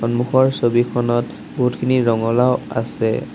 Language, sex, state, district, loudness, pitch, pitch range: Assamese, male, Assam, Sonitpur, -18 LUFS, 120 Hz, 120-125 Hz